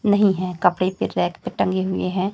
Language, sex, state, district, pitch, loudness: Hindi, female, Chhattisgarh, Raipur, 185 Hz, -21 LUFS